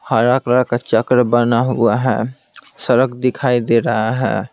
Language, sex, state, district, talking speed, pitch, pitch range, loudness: Hindi, male, Bihar, Patna, 160 wpm, 125 Hz, 115-125 Hz, -16 LUFS